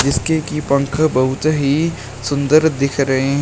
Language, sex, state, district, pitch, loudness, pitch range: Hindi, male, Uttar Pradesh, Shamli, 140 Hz, -17 LUFS, 135-155 Hz